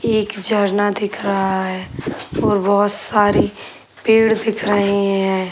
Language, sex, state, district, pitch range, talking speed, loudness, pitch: Hindi, male, Bihar, Sitamarhi, 195-210 Hz, 140 wpm, -17 LUFS, 205 Hz